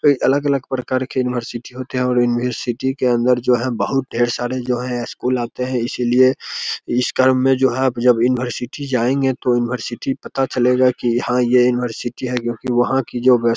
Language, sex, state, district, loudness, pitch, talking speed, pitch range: Hindi, male, Bihar, Begusarai, -18 LUFS, 125 Hz, 195 wpm, 120-130 Hz